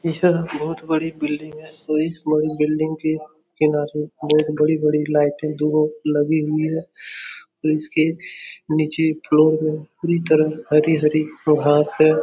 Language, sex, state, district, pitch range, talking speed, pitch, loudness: Hindi, male, Uttar Pradesh, Etah, 150-155 Hz, 130 wpm, 155 Hz, -20 LUFS